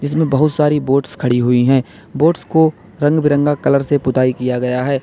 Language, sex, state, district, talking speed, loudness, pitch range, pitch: Hindi, male, Uttar Pradesh, Lalitpur, 205 wpm, -15 LUFS, 125-150 Hz, 140 Hz